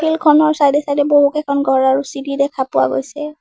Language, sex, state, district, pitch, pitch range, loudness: Assamese, female, Assam, Sonitpur, 285 Hz, 275-300 Hz, -15 LUFS